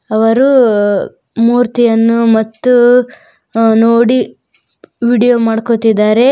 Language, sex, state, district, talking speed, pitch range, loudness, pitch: Kannada, female, Karnataka, Koppal, 55 wpm, 225-245 Hz, -11 LUFS, 230 Hz